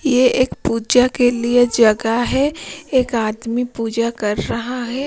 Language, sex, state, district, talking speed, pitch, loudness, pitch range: Hindi, female, Punjab, Pathankot, 155 wpm, 245 Hz, -17 LUFS, 230-255 Hz